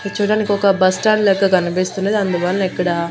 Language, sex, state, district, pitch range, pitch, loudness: Telugu, female, Andhra Pradesh, Annamaya, 180-205 Hz, 195 Hz, -16 LUFS